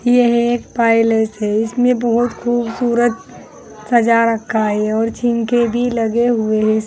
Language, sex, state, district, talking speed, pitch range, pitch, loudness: Hindi, female, Uttar Pradesh, Saharanpur, 140 wpm, 220-240 Hz, 230 Hz, -16 LUFS